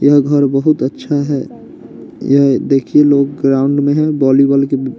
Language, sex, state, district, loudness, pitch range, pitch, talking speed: Hindi, male, Bihar, West Champaran, -13 LUFS, 135-145 Hz, 140 Hz, 155 wpm